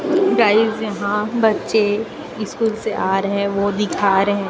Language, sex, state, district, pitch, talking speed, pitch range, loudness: Hindi, female, Chhattisgarh, Raipur, 210 Hz, 145 wpm, 200-220 Hz, -18 LUFS